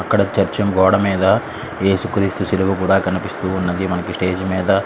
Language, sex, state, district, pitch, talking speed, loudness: Telugu, male, Andhra Pradesh, Srikakulam, 95 Hz, 150 wpm, -18 LUFS